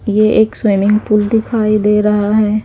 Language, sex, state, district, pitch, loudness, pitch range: Hindi, female, Haryana, Charkhi Dadri, 210 Hz, -13 LUFS, 210-220 Hz